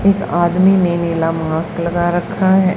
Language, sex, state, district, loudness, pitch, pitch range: Hindi, female, Haryana, Charkhi Dadri, -15 LUFS, 175 Hz, 170-190 Hz